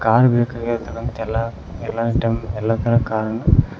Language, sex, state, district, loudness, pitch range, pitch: Kannada, male, Karnataka, Koppal, -20 LUFS, 110-115 Hz, 115 Hz